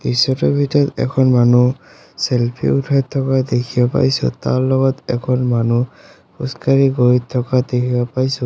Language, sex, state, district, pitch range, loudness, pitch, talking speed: Assamese, male, Assam, Sonitpur, 120-130 Hz, -16 LUFS, 125 Hz, 135 wpm